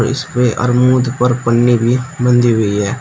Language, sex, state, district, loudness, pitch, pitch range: Hindi, male, Uttar Pradesh, Shamli, -13 LUFS, 125 Hz, 120-125 Hz